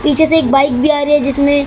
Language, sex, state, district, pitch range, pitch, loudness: Hindi, male, Maharashtra, Mumbai Suburban, 280-300 Hz, 290 Hz, -12 LUFS